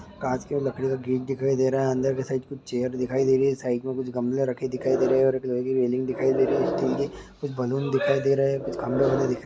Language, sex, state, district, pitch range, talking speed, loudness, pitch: Hindi, male, Jharkhand, Sahebganj, 130-135 Hz, 260 wpm, -25 LUFS, 130 Hz